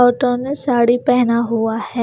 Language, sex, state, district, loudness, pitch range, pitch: Hindi, female, Chandigarh, Chandigarh, -16 LUFS, 235-250 Hz, 245 Hz